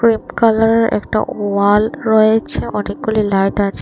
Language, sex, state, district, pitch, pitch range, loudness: Bengali, female, Tripura, West Tripura, 220 Hz, 205-225 Hz, -15 LUFS